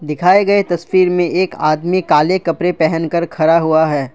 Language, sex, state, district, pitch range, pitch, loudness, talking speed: Hindi, male, Assam, Kamrup Metropolitan, 155-180 Hz, 170 Hz, -14 LUFS, 190 wpm